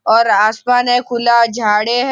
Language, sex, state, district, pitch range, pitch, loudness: Hindi, male, Maharashtra, Nagpur, 220-245 Hz, 235 Hz, -13 LUFS